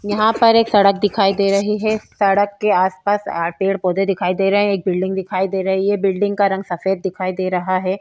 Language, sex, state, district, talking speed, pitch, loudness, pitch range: Hindi, female, Goa, North and South Goa, 225 wpm, 195 Hz, -17 LUFS, 190-205 Hz